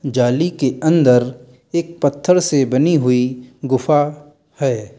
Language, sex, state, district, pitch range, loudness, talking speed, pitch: Hindi, male, Uttar Pradesh, Lalitpur, 125-155 Hz, -16 LUFS, 120 wpm, 140 Hz